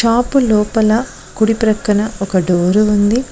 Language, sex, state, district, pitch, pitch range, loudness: Telugu, female, Telangana, Mahabubabad, 215 Hz, 205-230 Hz, -14 LUFS